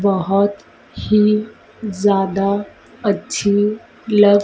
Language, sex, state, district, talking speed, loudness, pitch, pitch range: Hindi, female, Madhya Pradesh, Dhar, 70 wpm, -17 LUFS, 205 Hz, 195-210 Hz